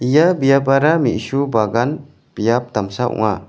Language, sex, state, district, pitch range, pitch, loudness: Garo, male, Meghalaya, West Garo Hills, 110-140 Hz, 125 Hz, -17 LUFS